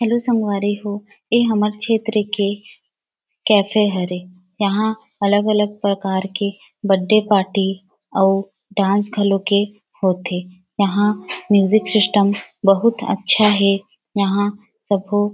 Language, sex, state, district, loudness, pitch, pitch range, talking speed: Chhattisgarhi, female, Chhattisgarh, Rajnandgaon, -18 LUFS, 205 Hz, 195-215 Hz, 115 wpm